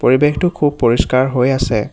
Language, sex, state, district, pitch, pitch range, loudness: Assamese, male, Assam, Hailakandi, 130 Hz, 125-145 Hz, -15 LUFS